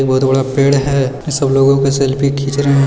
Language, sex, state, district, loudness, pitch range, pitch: Hindi, male, Bihar, Jamui, -13 LUFS, 135-140 Hz, 135 Hz